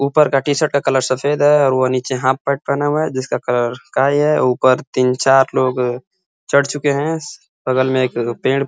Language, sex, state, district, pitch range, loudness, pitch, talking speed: Hindi, male, Uttar Pradesh, Ghazipur, 130-145 Hz, -16 LUFS, 135 Hz, 210 wpm